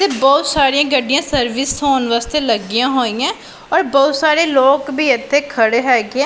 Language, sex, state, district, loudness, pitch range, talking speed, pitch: Punjabi, female, Punjab, Pathankot, -14 LUFS, 250-285 Hz, 170 wpm, 275 Hz